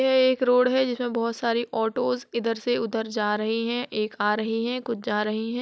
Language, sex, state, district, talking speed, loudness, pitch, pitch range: Hindi, female, Uttar Pradesh, Jalaun, 245 wpm, -25 LUFS, 230 Hz, 225-245 Hz